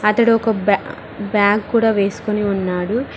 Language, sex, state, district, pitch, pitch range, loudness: Telugu, female, Telangana, Mahabubabad, 210 Hz, 200-225 Hz, -17 LUFS